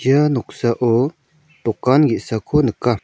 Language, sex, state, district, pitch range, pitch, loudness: Garo, male, Meghalaya, South Garo Hills, 120-150 Hz, 130 Hz, -18 LUFS